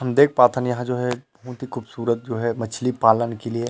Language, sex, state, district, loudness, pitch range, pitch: Chhattisgarhi, male, Chhattisgarh, Rajnandgaon, -21 LUFS, 115-125 Hz, 120 Hz